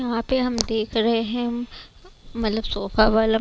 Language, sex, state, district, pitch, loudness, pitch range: Hindi, female, Bihar, West Champaran, 230 Hz, -22 LUFS, 220-240 Hz